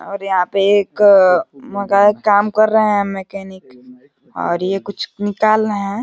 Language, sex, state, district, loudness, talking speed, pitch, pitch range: Hindi, male, Uttar Pradesh, Deoria, -15 LUFS, 150 wpm, 200 Hz, 190-205 Hz